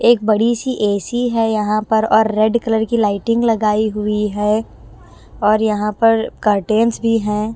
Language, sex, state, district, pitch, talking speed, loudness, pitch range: Hindi, female, Bihar, West Champaran, 215 Hz, 165 wpm, -16 LUFS, 210-225 Hz